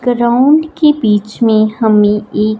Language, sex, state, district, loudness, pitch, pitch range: Hindi, female, Punjab, Fazilka, -11 LUFS, 225 Hz, 215-250 Hz